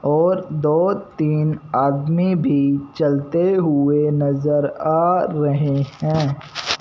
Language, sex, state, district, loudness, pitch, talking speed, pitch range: Hindi, male, Punjab, Fazilka, -19 LUFS, 150 Hz, 95 wpm, 140-160 Hz